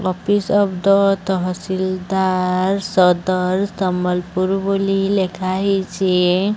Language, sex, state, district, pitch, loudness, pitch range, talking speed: Odia, male, Odisha, Sambalpur, 190 Hz, -18 LUFS, 185-195 Hz, 100 wpm